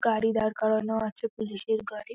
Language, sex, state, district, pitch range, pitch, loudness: Bengali, female, West Bengal, North 24 Parganas, 215-225 Hz, 220 Hz, -29 LUFS